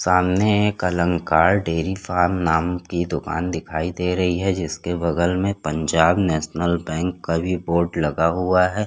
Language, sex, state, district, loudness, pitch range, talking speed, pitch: Hindi, male, Chhattisgarh, Korba, -21 LUFS, 85-90 Hz, 160 wpm, 90 Hz